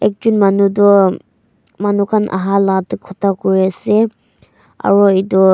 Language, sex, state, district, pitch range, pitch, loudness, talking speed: Nagamese, female, Nagaland, Kohima, 190-205 Hz, 200 Hz, -14 LUFS, 130 wpm